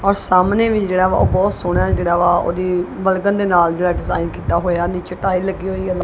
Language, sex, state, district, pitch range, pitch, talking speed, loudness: Punjabi, female, Punjab, Kapurthala, 175-190 Hz, 185 Hz, 210 wpm, -17 LUFS